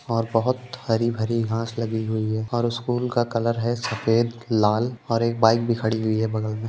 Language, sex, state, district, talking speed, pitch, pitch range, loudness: Hindi, male, Uttar Pradesh, Budaun, 225 wpm, 115 Hz, 110-120 Hz, -23 LUFS